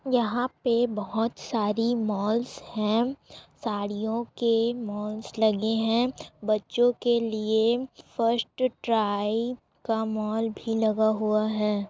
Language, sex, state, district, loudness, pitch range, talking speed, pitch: Hindi, female, Chhattisgarh, Raigarh, -27 LUFS, 215-235 Hz, 100 wpm, 225 Hz